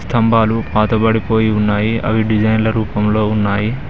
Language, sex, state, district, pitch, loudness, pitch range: Telugu, male, Telangana, Mahabubabad, 110 Hz, -15 LUFS, 105-110 Hz